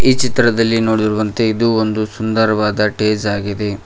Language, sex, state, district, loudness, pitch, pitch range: Kannada, male, Karnataka, Koppal, -16 LUFS, 110 Hz, 105-115 Hz